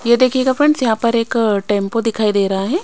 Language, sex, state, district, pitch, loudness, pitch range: Hindi, female, Maharashtra, Mumbai Suburban, 230 Hz, -16 LUFS, 210-255 Hz